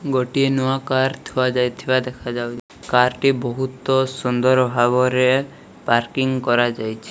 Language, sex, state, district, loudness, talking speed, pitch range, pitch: Odia, male, Odisha, Malkangiri, -19 LUFS, 110 wpm, 125-130 Hz, 130 Hz